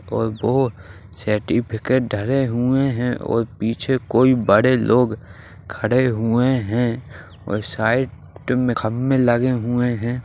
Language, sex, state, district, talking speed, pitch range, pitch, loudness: Hindi, male, Bihar, Purnia, 125 wpm, 110-125 Hz, 120 Hz, -20 LUFS